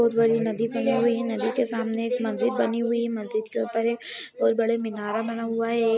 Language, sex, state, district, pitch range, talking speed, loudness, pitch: Hindi, female, Bihar, Jamui, 225-235 Hz, 240 wpm, -25 LUFS, 230 Hz